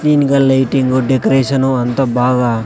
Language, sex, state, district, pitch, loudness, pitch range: Telugu, male, Andhra Pradesh, Sri Satya Sai, 130 Hz, -13 LUFS, 125-135 Hz